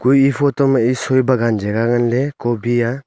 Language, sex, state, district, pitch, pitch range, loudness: Wancho, male, Arunachal Pradesh, Longding, 125 Hz, 120-135 Hz, -16 LUFS